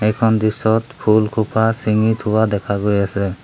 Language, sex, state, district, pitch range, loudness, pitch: Assamese, male, Assam, Sonitpur, 105-110 Hz, -17 LUFS, 110 Hz